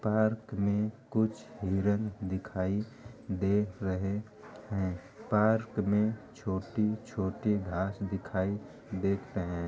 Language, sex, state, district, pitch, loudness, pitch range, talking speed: Hindi, male, Uttar Pradesh, Ghazipur, 105 Hz, -32 LUFS, 95-110 Hz, 120 wpm